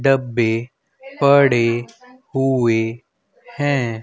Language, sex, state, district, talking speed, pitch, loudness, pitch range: Hindi, male, Haryana, Rohtak, 60 wpm, 135 Hz, -18 LUFS, 115-140 Hz